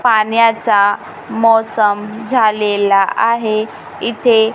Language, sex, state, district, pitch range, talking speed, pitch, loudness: Marathi, female, Maharashtra, Gondia, 210-230 Hz, 65 wpm, 220 Hz, -14 LUFS